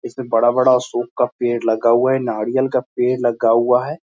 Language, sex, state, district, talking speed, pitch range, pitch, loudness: Hindi, male, Bihar, Muzaffarpur, 210 wpm, 120-130 Hz, 125 Hz, -17 LUFS